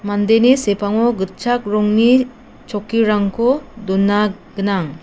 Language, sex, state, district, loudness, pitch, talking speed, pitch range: Garo, female, Meghalaya, South Garo Hills, -16 LUFS, 210 Hz, 85 wpm, 205-240 Hz